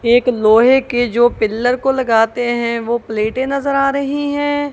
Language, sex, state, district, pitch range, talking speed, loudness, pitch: Hindi, female, Punjab, Kapurthala, 235-275 Hz, 180 wpm, -15 LUFS, 245 Hz